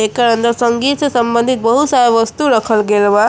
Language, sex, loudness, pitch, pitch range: Bhojpuri, female, -13 LUFS, 235 Hz, 225-250 Hz